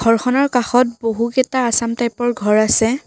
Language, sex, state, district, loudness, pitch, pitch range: Assamese, female, Assam, Kamrup Metropolitan, -16 LUFS, 235 Hz, 230-250 Hz